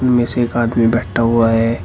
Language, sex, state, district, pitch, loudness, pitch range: Hindi, male, Uttar Pradesh, Shamli, 115 Hz, -15 LUFS, 115-120 Hz